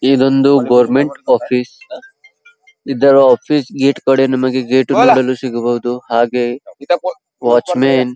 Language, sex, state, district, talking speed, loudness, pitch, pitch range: Kannada, female, Karnataka, Belgaum, 105 wpm, -13 LUFS, 135 Hz, 125-140 Hz